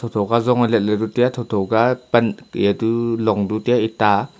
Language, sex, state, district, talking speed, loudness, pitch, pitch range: Wancho, male, Arunachal Pradesh, Longding, 245 wpm, -18 LUFS, 115 Hz, 105-120 Hz